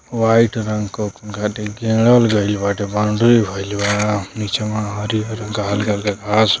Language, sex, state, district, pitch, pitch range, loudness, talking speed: Bhojpuri, male, Uttar Pradesh, Deoria, 105 Hz, 105-110 Hz, -18 LUFS, 135 wpm